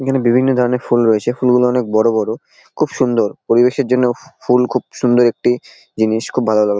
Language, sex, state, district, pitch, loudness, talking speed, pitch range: Bengali, male, West Bengal, Jalpaiguri, 125 Hz, -15 LUFS, 185 wpm, 115-125 Hz